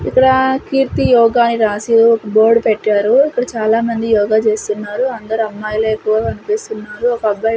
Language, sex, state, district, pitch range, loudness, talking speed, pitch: Telugu, female, Andhra Pradesh, Sri Satya Sai, 215-240 Hz, -14 LUFS, 145 wpm, 225 Hz